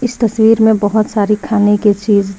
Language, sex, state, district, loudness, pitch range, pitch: Hindi, female, Uttar Pradesh, Lucknow, -12 LUFS, 205-220 Hz, 210 Hz